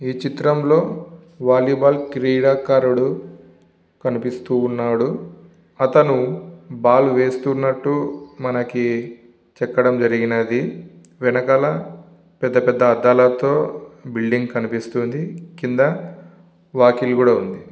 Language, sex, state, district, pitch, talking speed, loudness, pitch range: Telugu, male, Andhra Pradesh, Visakhapatnam, 125 Hz, 80 wpm, -18 LUFS, 120-140 Hz